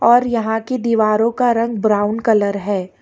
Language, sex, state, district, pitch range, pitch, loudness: Hindi, female, Karnataka, Bangalore, 210-235 Hz, 225 Hz, -17 LUFS